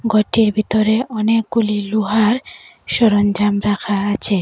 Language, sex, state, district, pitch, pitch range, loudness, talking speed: Bengali, female, Assam, Hailakandi, 215 Hz, 205-225 Hz, -16 LUFS, 95 wpm